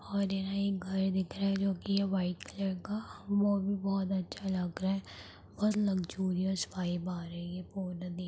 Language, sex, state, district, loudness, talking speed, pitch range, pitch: Hindi, female, Bihar, Darbhanga, -34 LUFS, 195 wpm, 180-195 Hz, 190 Hz